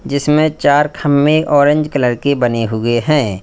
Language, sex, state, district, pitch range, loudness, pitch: Hindi, male, Uttar Pradesh, Lalitpur, 120-150 Hz, -14 LUFS, 145 Hz